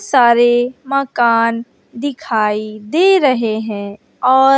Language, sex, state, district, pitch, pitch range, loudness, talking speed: Hindi, female, Bihar, West Champaran, 240 Hz, 220-270 Hz, -15 LUFS, 90 wpm